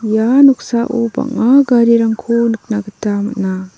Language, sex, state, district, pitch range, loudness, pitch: Garo, female, Meghalaya, South Garo Hills, 215-245 Hz, -13 LUFS, 230 Hz